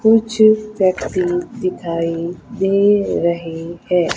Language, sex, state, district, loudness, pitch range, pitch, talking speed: Hindi, female, Madhya Pradesh, Umaria, -17 LUFS, 170-220 Hz, 190 Hz, 70 wpm